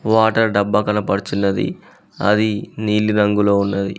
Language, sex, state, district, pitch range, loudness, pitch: Telugu, male, Telangana, Mahabubabad, 100-105 Hz, -18 LUFS, 105 Hz